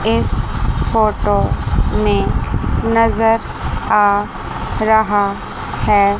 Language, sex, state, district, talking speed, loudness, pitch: Hindi, female, Chandigarh, Chandigarh, 70 wpm, -16 LUFS, 200 Hz